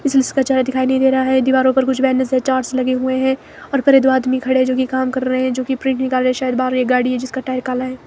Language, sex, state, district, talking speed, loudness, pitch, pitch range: Hindi, female, Himachal Pradesh, Shimla, 335 wpm, -17 LUFS, 260 Hz, 255-265 Hz